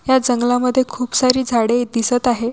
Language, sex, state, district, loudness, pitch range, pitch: Marathi, female, Maharashtra, Washim, -17 LUFS, 240-255 Hz, 245 Hz